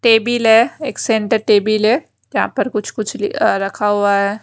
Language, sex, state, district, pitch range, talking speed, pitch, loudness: Hindi, female, Haryana, Rohtak, 205-230 Hz, 205 wpm, 215 Hz, -16 LUFS